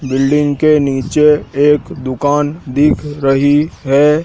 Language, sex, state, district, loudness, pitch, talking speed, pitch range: Hindi, male, Madhya Pradesh, Dhar, -13 LUFS, 145 Hz, 115 wpm, 135-150 Hz